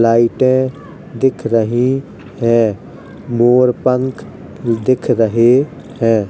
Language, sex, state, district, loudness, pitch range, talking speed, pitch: Hindi, male, Uttar Pradesh, Jalaun, -15 LUFS, 115-130 Hz, 85 wpm, 125 Hz